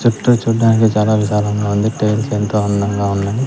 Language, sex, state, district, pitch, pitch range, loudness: Telugu, male, Andhra Pradesh, Sri Satya Sai, 105 Hz, 105-115 Hz, -15 LUFS